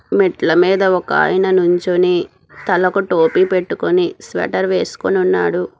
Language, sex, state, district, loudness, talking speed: Telugu, male, Telangana, Hyderabad, -15 LUFS, 105 wpm